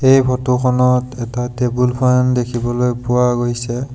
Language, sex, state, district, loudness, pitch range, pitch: Assamese, male, Assam, Sonitpur, -16 LUFS, 120-125 Hz, 125 Hz